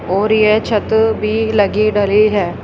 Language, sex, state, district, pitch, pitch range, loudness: Hindi, female, Rajasthan, Jaipur, 215 Hz, 205-220 Hz, -14 LUFS